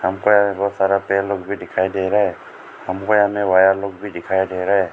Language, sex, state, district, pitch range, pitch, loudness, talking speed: Hindi, male, Arunachal Pradesh, Lower Dibang Valley, 95-100 Hz, 100 Hz, -18 LUFS, 270 wpm